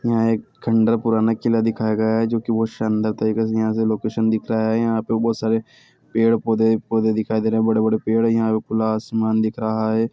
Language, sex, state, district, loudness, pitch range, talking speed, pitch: Hindi, male, Bihar, Begusarai, -20 LUFS, 110-115 Hz, 235 wpm, 110 Hz